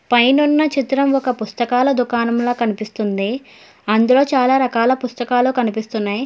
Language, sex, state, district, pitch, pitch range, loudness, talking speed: Telugu, female, Telangana, Hyderabad, 245 Hz, 225-260 Hz, -17 LUFS, 115 wpm